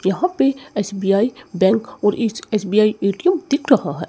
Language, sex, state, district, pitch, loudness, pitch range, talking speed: Hindi, male, Chandigarh, Chandigarh, 215 Hz, -19 LUFS, 195-265 Hz, 145 wpm